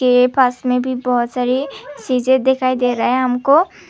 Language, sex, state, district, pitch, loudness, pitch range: Hindi, female, Tripura, Unakoti, 255 Hz, -16 LUFS, 250-260 Hz